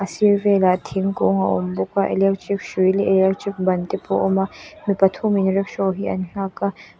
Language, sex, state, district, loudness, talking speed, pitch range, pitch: Mizo, female, Mizoram, Aizawl, -20 LUFS, 215 wpm, 185-200 Hz, 195 Hz